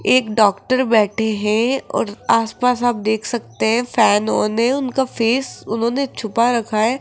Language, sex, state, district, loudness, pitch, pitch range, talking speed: Hindi, female, Rajasthan, Jaipur, -18 LUFS, 230 Hz, 220-250 Hz, 170 wpm